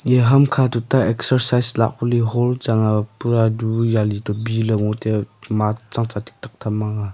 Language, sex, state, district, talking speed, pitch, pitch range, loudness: Wancho, male, Arunachal Pradesh, Longding, 185 wpm, 115 Hz, 110-120 Hz, -19 LUFS